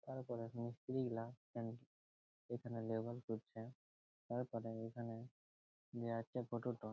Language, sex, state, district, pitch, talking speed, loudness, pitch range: Bengali, male, West Bengal, Jhargram, 115 Hz, 115 wpm, -47 LUFS, 110-120 Hz